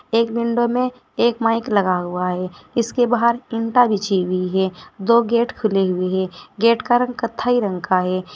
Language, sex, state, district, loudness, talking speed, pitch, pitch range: Hindi, female, Uttar Pradesh, Saharanpur, -19 LUFS, 185 wpm, 225 Hz, 185-235 Hz